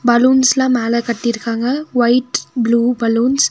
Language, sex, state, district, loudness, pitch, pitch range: Tamil, female, Tamil Nadu, Nilgiris, -15 LUFS, 240 Hz, 235-255 Hz